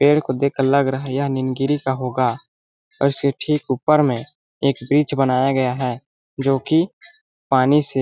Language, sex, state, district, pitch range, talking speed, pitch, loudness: Hindi, male, Chhattisgarh, Balrampur, 130-145 Hz, 185 wpm, 135 Hz, -19 LUFS